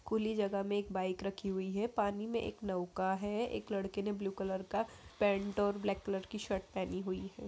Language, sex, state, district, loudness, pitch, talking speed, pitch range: Hindi, female, Bihar, Saharsa, -37 LUFS, 200 Hz, 225 wpm, 190-210 Hz